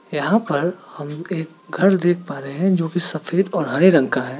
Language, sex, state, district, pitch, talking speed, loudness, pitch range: Hindi, male, Meghalaya, West Garo Hills, 170 Hz, 215 wpm, -19 LUFS, 145-180 Hz